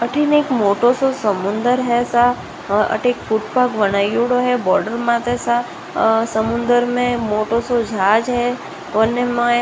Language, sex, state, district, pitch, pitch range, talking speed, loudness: Rajasthani, female, Rajasthan, Nagaur, 240 Hz, 220-245 Hz, 145 wpm, -17 LUFS